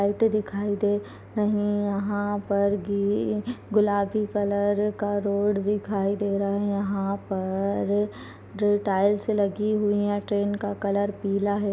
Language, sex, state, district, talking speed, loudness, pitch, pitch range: Hindi, female, Chhattisgarh, Balrampur, 140 wpm, -25 LUFS, 205 Hz, 200-205 Hz